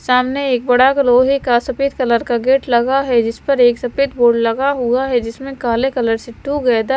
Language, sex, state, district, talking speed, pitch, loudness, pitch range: Hindi, female, Himachal Pradesh, Shimla, 215 wpm, 250 Hz, -15 LUFS, 240-270 Hz